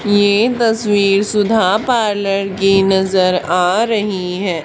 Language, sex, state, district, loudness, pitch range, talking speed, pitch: Hindi, female, Haryana, Charkhi Dadri, -14 LUFS, 190-215 Hz, 115 wpm, 200 Hz